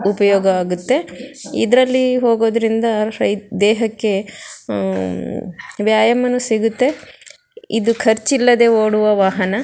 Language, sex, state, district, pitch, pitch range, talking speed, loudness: Kannada, female, Karnataka, Shimoga, 220 Hz, 200-240 Hz, 85 wpm, -16 LUFS